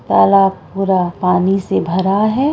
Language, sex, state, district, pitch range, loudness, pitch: Hindi, female, Bihar, Araria, 180-195 Hz, -15 LUFS, 190 Hz